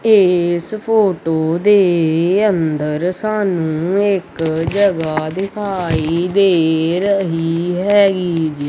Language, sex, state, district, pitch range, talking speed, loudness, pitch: Punjabi, male, Punjab, Kapurthala, 160-200 Hz, 85 wpm, -16 LUFS, 180 Hz